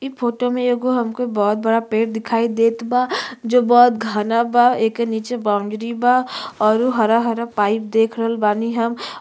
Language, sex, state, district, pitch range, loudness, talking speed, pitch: Bhojpuri, female, Uttar Pradesh, Gorakhpur, 225-245 Hz, -18 LUFS, 170 wpm, 230 Hz